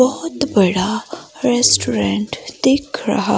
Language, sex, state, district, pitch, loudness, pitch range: Hindi, female, Himachal Pradesh, Shimla, 245 Hz, -17 LUFS, 185-280 Hz